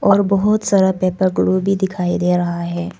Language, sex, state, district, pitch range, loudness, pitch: Hindi, female, Arunachal Pradesh, Papum Pare, 180-195 Hz, -17 LUFS, 185 Hz